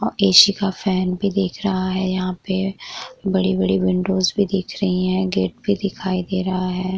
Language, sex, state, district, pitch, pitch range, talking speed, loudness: Hindi, female, Bihar, Vaishali, 185 Hz, 185-195 Hz, 190 wpm, -19 LUFS